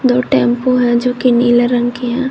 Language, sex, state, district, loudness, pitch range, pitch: Hindi, female, Jharkhand, Garhwa, -13 LUFS, 240-250 Hz, 245 Hz